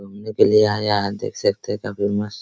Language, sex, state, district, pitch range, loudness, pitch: Hindi, male, Bihar, Araria, 100-105 Hz, -20 LUFS, 105 Hz